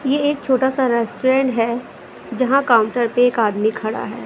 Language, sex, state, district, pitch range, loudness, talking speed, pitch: Hindi, female, Bihar, West Champaran, 230-265 Hz, -18 LUFS, 185 wpm, 245 Hz